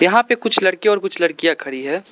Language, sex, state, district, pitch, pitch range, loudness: Hindi, male, Arunachal Pradesh, Lower Dibang Valley, 185 Hz, 165-220 Hz, -17 LUFS